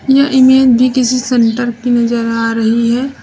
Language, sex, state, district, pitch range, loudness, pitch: Hindi, female, Uttar Pradesh, Lucknow, 230-260 Hz, -11 LUFS, 245 Hz